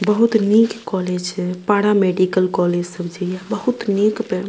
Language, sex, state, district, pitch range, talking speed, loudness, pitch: Maithili, female, Bihar, Purnia, 180-210 Hz, 185 wpm, -18 LUFS, 190 Hz